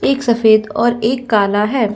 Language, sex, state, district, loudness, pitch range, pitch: Hindi, female, Chhattisgarh, Bilaspur, -14 LUFS, 210-240 Hz, 225 Hz